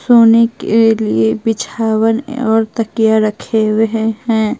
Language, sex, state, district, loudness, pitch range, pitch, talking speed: Hindi, female, Bihar, Patna, -13 LUFS, 220-225 Hz, 225 Hz, 115 wpm